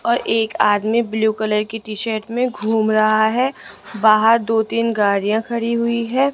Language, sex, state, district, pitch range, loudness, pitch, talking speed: Hindi, female, Rajasthan, Jaipur, 215-235 Hz, -18 LUFS, 225 Hz, 180 wpm